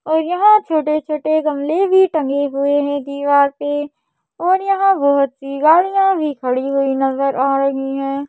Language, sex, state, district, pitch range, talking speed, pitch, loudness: Hindi, female, Madhya Pradesh, Bhopal, 275-320 Hz, 160 wpm, 290 Hz, -16 LUFS